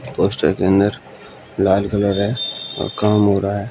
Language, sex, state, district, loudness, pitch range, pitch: Hindi, male, Bihar, West Champaran, -17 LUFS, 100-105 Hz, 100 Hz